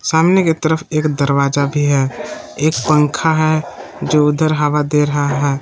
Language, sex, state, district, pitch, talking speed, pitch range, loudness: Hindi, male, Jharkhand, Palamu, 150 Hz, 170 wpm, 145-155 Hz, -15 LUFS